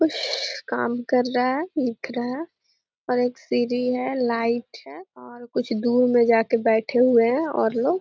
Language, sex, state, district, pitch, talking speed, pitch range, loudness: Hindi, female, Bihar, Begusarai, 245 Hz, 185 wpm, 240-265 Hz, -22 LUFS